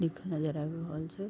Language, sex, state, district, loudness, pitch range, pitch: Maithili, female, Bihar, Vaishali, -36 LUFS, 155-170 Hz, 160 Hz